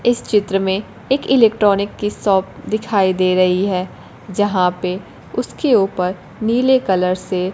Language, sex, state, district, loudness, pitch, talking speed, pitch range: Hindi, female, Bihar, Kaimur, -17 LUFS, 195 Hz, 145 wpm, 185-210 Hz